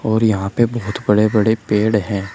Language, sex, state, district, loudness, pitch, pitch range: Hindi, male, Uttar Pradesh, Shamli, -17 LUFS, 110 Hz, 105-110 Hz